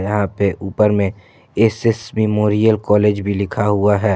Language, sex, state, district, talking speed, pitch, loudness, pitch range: Hindi, male, Jharkhand, Ranchi, 175 wpm, 105 Hz, -17 LUFS, 100-110 Hz